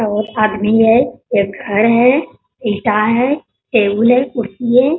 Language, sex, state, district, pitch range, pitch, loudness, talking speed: Hindi, female, Bihar, Bhagalpur, 215-250 Hz, 225 Hz, -14 LUFS, 170 wpm